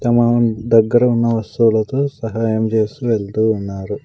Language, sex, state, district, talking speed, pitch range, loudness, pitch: Telugu, male, Andhra Pradesh, Sri Satya Sai, 120 wpm, 110-120 Hz, -16 LUFS, 115 Hz